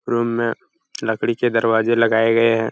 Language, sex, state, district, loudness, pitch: Hindi, male, Uttar Pradesh, Hamirpur, -18 LUFS, 115 Hz